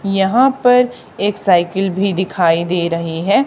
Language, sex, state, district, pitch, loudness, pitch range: Hindi, female, Haryana, Charkhi Dadri, 195 Hz, -15 LUFS, 175-205 Hz